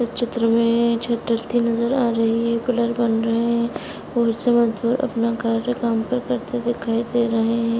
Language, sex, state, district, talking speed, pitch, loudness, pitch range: Hindi, female, Uttar Pradesh, Muzaffarnagar, 145 wpm, 235 Hz, -21 LUFS, 230-240 Hz